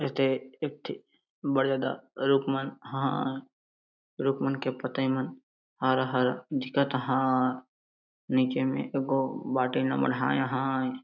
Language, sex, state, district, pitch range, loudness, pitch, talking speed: Sadri, male, Chhattisgarh, Jashpur, 130-135 Hz, -29 LUFS, 130 Hz, 115 wpm